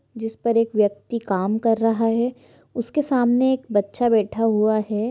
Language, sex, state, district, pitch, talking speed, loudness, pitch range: Hindi, female, Andhra Pradesh, Anantapur, 225 Hz, 165 wpm, -21 LUFS, 215-240 Hz